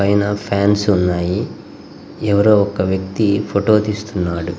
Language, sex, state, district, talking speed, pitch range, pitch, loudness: Telugu, male, Andhra Pradesh, Guntur, 105 wpm, 95-105 Hz, 100 Hz, -17 LUFS